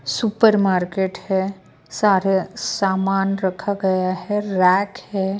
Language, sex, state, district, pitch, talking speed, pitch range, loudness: Hindi, female, Bihar, Patna, 195 Hz, 110 wpm, 190-205 Hz, -20 LUFS